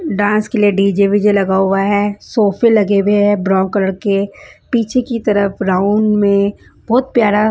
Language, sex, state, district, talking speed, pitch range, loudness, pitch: Hindi, female, Punjab, Fazilka, 175 wpm, 200-215 Hz, -14 LUFS, 205 Hz